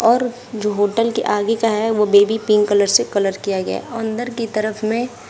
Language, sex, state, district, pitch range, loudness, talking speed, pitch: Hindi, female, Uttar Pradesh, Shamli, 210-230 Hz, -18 LUFS, 215 wpm, 215 Hz